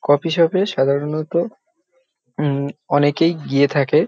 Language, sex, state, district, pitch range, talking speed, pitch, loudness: Bengali, male, West Bengal, North 24 Parganas, 140-170 Hz, 115 wpm, 155 Hz, -18 LUFS